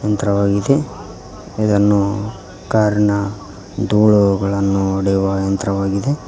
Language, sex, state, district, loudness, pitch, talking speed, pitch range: Kannada, male, Karnataka, Koppal, -16 LUFS, 100 Hz, 55 wpm, 95-105 Hz